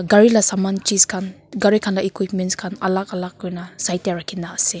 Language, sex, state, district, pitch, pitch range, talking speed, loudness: Nagamese, female, Nagaland, Kohima, 190 Hz, 185-200 Hz, 210 wpm, -19 LUFS